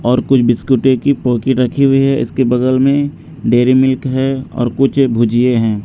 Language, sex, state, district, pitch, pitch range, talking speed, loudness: Hindi, male, Bihar, Katihar, 130 Hz, 120-135 Hz, 185 wpm, -13 LUFS